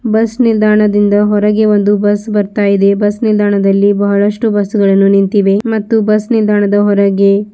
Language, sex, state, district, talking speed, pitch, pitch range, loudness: Kannada, female, Karnataka, Bidar, 125 wpm, 205 Hz, 200-215 Hz, -11 LUFS